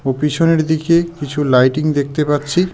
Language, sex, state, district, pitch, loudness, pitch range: Bengali, male, West Bengal, Darjeeling, 150 Hz, -15 LUFS, 145-165 Hz